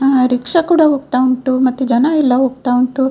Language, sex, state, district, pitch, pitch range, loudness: Kannada, female, Karnataka, Dakshina Kannada, 260 Hz, 255-275 Hz, -14 LUFS